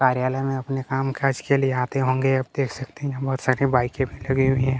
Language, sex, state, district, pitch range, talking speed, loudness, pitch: Hindi, male, Chhattisgarh, Kabirdham, 130-135 Hz, 260 wpm, -23 LUFS, 135 Hz